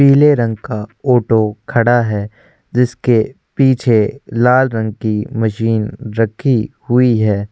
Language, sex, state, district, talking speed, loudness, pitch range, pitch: Hindi, male, Chhattisgarh, Korba, 120 wpm, -15 LUFS, 110-125 Hz, 115 Hz